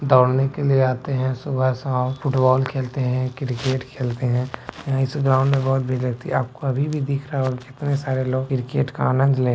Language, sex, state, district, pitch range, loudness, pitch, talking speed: Maithili, male, Bihar, Bhagalpur, 130-135 Hz, -22 LUFS, 130 Hz, 200 wpm